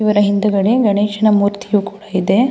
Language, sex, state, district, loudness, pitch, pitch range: Kannada, female, Karnataka, Mysore, -15 LUFS, 205 Hz, 200-210 Hz